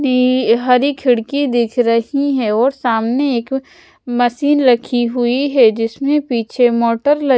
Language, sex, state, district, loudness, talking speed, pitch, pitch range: Hindi, female, Odisha, Sambalpur, -15 LUFS, 140 wpm, 250 Hz, 235-275 Hz